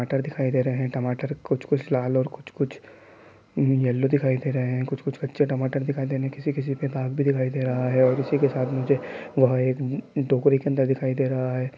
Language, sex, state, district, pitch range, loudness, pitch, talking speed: Hindi, male, Bihar, Sitamarhi, 130-140 Hz, -24 LUFS, 135 Hz, 240 wpm